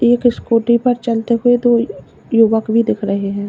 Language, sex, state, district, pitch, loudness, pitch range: Hindi, female, Uttar Pradesh, Lalitpur, 230 Hz, -15 LUFS, 225-240 Hz